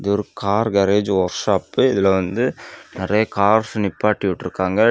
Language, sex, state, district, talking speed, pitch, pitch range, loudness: Tamil, male, Tamil Nadu, Kanyakumari, 120 wpm, 100 Hz, 95-105 Hz, -19 LUFS